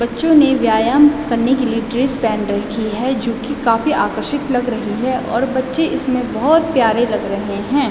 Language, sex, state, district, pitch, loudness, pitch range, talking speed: Hindi, female, Uttarakhand, Tehri Garhwal, 245 Hz, -16 LUFS, 230-270 Hz, 190 wpm